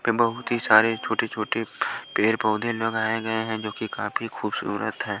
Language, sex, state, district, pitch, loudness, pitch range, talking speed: Hindi, male, Punjab, Pathankot, 110 Hz, -25 LUFS, 110-115 Hz, 185 wpm